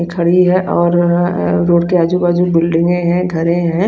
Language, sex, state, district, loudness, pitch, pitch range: Hindi, female, Chandigarh, Chandigarh, -13 LUFS, 175 Hz, 170-180 Hz